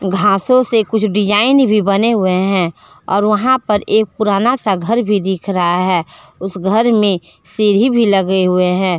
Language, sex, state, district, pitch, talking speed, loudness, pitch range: Hindi, female, Jharkhand, Deoghar, 205 Hz, 180 wpm, -14 LUFS, 185-220 Hz